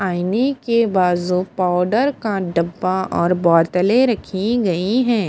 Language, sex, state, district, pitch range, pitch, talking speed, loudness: Hindi, female, Punjab, Fazilka, 180-230 Hz, 190 Hz, 125 wpm, -18 LUFS